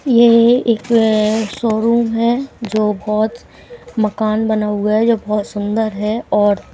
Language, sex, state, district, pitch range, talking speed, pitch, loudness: Hindi, female, Himachal Pradesh, Shimla, 210-230 Hz, 135 wpm, 220 Hz, -15 LUFS